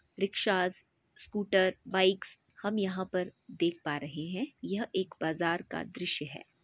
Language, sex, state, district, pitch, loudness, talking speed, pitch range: Hindi, female, Chhattisgarh, Bastar, 185 Hz, -32 LUFS, 145 wpm, 170-205 Hz